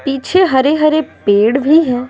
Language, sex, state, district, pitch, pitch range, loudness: Hindi, female, Bihar, West Champaran, 275 Hz, 255-310 Hz, -12 LUFS